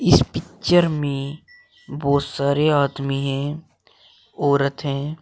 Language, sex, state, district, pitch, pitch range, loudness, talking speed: Hindi, female, Uttar Pradesh, Shamli, 140 Hz, 140-155 Hz, -21 LUFS, 105 wpm